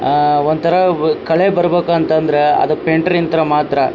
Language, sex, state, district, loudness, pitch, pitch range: Kannada, male, Karnataka, Dharwad, -14 LUFS, 160 Hz, 150-175 Hz